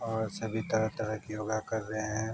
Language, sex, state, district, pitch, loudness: Hindi, male, Uttar Pradesh, Varanasi, 110 Hz, -33 LUFS